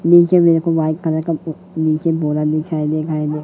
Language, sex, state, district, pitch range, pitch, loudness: Hindi, female, Madhya Pradesh, Katni, 155-165 Hz, 160 Hz, -17 LUFS